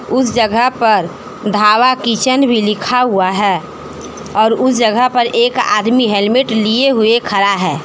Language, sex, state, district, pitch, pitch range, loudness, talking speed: Hindi, female, Jharkhand, Deoghar, 225 Hz, 210-250 Hz, -12 LUFS, 155 wpm